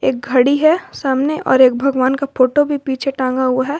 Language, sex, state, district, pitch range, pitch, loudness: Hindi, female, Jharkhand, Garhwa, 255-285 Hz, 265 Hz, -15 LUFS